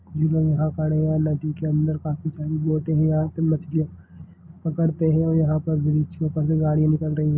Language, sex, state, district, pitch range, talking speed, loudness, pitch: Hindi, male, Bihar, Begusarai, 155-160 Hz, 230 wpm, -23 LUFS, 155 Hz